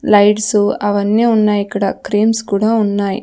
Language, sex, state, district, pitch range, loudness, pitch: Telugu, female, Andhra Pradesh, Sri Satya Sai, 205-220 Hz, -14 LUFS, 205 Hz